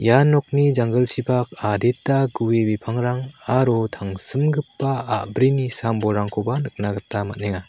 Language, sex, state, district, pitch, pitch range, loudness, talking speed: Garo, male, Meghalaya, South Garo Hills, 120 Hz, 105-135 Hz, -21 LUFS, 100 wpm